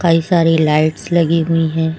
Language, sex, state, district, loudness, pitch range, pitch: Hindi, female, Uttar Pradesh, Lucknow, -14 LUFS, 160-165 Hz, 165 Hz